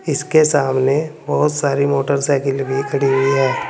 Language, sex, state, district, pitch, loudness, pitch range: Hindi, male, Uttar Pradesh, Saharanpur, 140 Hz, -17 LUFS, 135-150 Hz